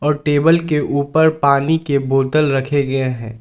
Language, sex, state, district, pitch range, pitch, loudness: Hindi, male, Jharkhand, Garhwa, 135-150 Hz, 145 Hz, -16 LUFS